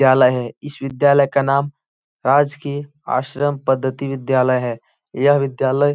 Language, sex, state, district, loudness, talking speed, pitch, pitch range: Hindi, male, Uttar Pradesh, Etah, -18 LUFS, 140 wpm, 135 Hz, 130-145 Hz